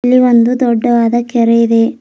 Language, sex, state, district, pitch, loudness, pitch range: Kannada, female, Karnataka, Bidar, 240 Hz, -11 LUFS, 230-245 Hz